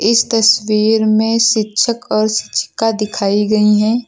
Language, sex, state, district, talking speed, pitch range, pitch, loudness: Hindi, female, Uttar Pradesh, Lucknow, 130 wpm, 215-225 Hz, 220 Hz, -14 LUFS